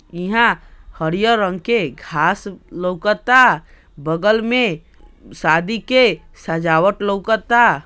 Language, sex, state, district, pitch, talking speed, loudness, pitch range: Hindi, male, Bihar, East Champaran, 205 Hz, 90 wpm, -17 LUFS, 170-230 Hz